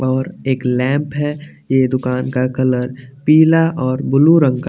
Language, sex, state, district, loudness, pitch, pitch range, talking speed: Hindi, male, Bihar, West Champaran, -16 LUFS, 130 Hz, 130-150 Hz, 180 wpm